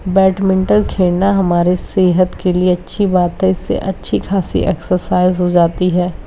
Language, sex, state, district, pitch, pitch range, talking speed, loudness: Hindi, female, Bihar, Kishanganj, 185 Hz, 180-190 Hz, 155 wpm, -14 LUFS